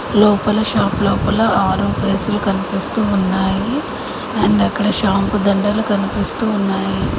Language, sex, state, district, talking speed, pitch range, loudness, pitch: Telugu, female, Telangana, Mahabubabad, 100 wpm, 195-215 Hz, -17 LUFS, 205 Hz